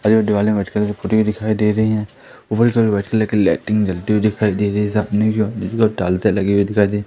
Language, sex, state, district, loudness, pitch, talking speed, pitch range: Hindi, male, Madhya Pradesh, Katni, -17 LUFS, 105 Hz, 95 wpm, 105-110 Hz